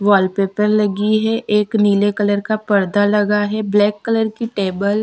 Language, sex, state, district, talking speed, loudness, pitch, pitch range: Hindi, female, Bihar, Patna, 180 wpm, -17 LUFS, 210 Hz, 205-215 Hz